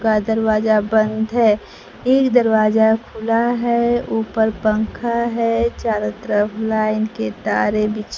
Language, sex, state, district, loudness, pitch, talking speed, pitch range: Hindi, female, Bihar, Kaimur, -18 LUFS, 220 Hz, 130 wpm, 215-230 Hz